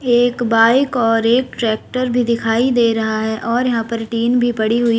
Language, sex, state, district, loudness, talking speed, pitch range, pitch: Hindi, female, Uttar Pradesh, Lalitpur, -16 LUFS, 205 wpm, 225-245 Hz, 235 Hz